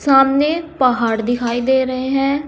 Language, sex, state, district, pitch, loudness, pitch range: Hindi, female, Uttar Pradesh, Saharanpur, 265 Hz, -16 LUFS, 245-275 Hz